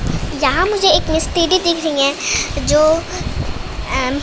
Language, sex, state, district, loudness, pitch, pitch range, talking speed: Hindi, female, Bihar, West Champaran, -16 LUFS, 320 Hz, 285-340 Hz, 125 wpm